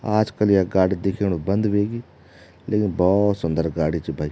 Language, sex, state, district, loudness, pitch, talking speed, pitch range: Garhwali, male, Uttarakhand, Tehri Garhwal, -21 LUFS, 95 Hz, 180 wpm, 85-105 Hz